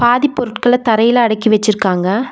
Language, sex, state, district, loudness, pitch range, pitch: Tamil, female, Tamil Nadu, Nilgiris, -13 LUFS, 215-245 Hz, 230 Hz